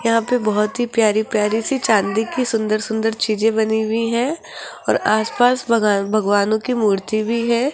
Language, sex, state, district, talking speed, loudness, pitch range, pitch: Hindi, female, Rajasthan, Jaipur, 185 wpm, -18 LUFS, 215-235 Hz, 220 Hz